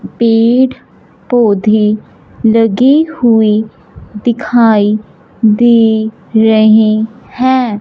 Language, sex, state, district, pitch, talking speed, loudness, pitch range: Hindi, male, Punjab, Fazilka, 220 Hz, 60 wpm, -10 LUFS, 215-240 Hz